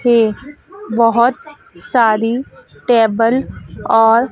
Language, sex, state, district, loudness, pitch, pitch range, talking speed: Hindi, female, Madhya Pradesh, Dhar, -14 LUFS, 235 Hz, 225-255 Hz, 70 wpm